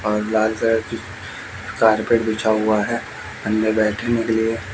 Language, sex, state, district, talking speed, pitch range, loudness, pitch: Hindi, male, Bihar, West Champaran, 150 wpm, 105-115 Hz, -20 LUFS, 110 Hz